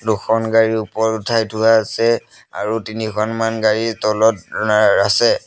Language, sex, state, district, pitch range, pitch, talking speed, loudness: Assamese, male, Assam, Sonitpur, 110-115 Hz, 110 Hz, 130 wpm, -17 LUFS